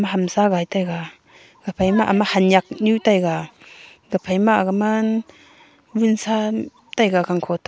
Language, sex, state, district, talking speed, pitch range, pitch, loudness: Wancho, female, Arunachal Pradesh, Longding, 80 wpm, 185-220 Hz, 205 Hz, -19 LUFS